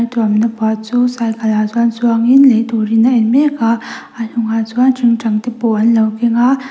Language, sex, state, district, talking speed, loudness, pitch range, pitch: Mizo, female, Mizoram, Aizawl, 205 wpm, -13 LUFS, 225-245 Hz, 230 Hz